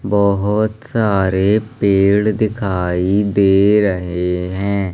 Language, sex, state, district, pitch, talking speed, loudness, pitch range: Hindi, male, Madhya Pradesh, Umaria, 100 Hz, 85 wpm, -16 LUFS, 95-105 Hz